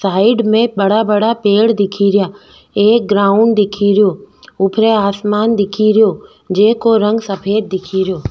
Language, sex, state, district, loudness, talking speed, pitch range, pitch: Rajasthani, female, Rajasthan, Nagaur, -13 LUFS, 115 wpm, 200-220 Hz, 205 Hz